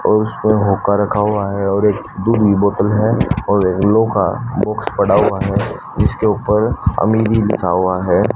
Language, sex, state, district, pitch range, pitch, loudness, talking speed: Hindi, male, Haryana, Jhajjar, 100-110 Hz, 105 Hz, -15 LUFS, 170 wpm